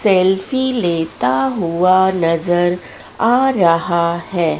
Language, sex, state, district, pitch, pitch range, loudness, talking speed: Hindi, female, Madhya Pradesh, Dhar, 175 Hz, 165-190 Hz, -16 LUFS, 90 wpm